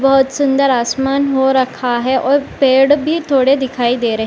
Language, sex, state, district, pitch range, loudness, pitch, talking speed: Hindi, female, Uttar Pradesh, Etah, 255-275 Hz, -14 LUFS, 265 Hz, 195 wpm